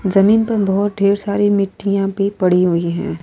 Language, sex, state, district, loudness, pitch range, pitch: Hindi, female, Bihar, Vaishali, -16 LUFS, 190-205 Hz, 200 Hz